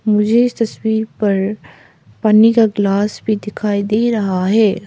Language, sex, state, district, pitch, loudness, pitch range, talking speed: Hindi, female, Arunachal Pradesh, Papum Pare, 210 Hz, -15 LUFS, 200-220 Hz, 150 wpm